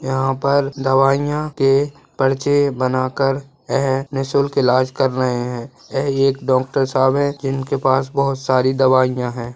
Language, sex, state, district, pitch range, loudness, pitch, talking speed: Hindi, male, Bihar, Purnia, 130-140 Hz, -18 LUFS, 135 Hz, 155 wpm